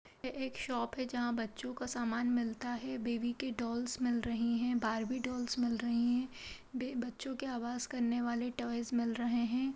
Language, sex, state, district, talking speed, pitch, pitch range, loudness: Hindi, female, Uttar Pradesh, Jalaun, 190 wpm, 240 Hz, 235-255 Hz, -37 LUFS